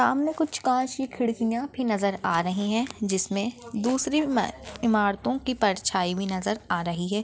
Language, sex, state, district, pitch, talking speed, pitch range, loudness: Hindi, female, Maharashtra, Nagpur, 220 Hz, 165 wpm, 200-255 Hz, -26 LUFS